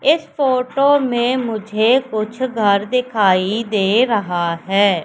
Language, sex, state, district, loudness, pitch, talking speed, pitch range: Hindi, female, Madhya Pradesh, Katni, -17 LUFS, 220 Hz, 120 wpm, 200-255 Hz